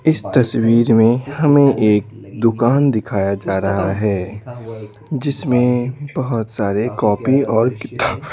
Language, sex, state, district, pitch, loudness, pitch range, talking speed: Hindi, male, Bihar, Patna, 115 Hz, -16 LUFS, 105-130 Hz, 120 wpm